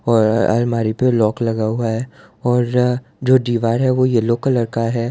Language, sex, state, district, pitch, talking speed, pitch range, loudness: Hindi, male, Gujarat, Valsad, 120 Hz, 190 wpm, 115-125 Hz, -17 LUFS